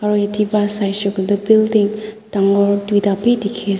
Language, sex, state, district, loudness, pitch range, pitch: Nagamese, female, Nagaland, Dimapur, -16 LUFS, 200-215 Hz, 205 Hz